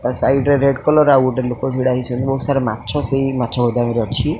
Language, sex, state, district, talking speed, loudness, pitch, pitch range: Odia, male, Odisha, Khordha, 230 wpm, -17 LUFS, 130 Hz, 125-140 Hz